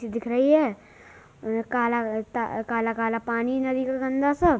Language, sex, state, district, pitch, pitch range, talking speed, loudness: Hindi, female, Uttar Pradesh, Budaun, 235 Hz, 230-260 Hz, 155 wpm, -25 LUFS